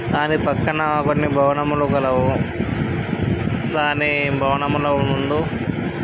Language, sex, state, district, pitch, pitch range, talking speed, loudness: Telugu, male, Andhra Pradesh, Krishna, 145 Hz, 135-150 Hz, 80 wpm, -19 LUFS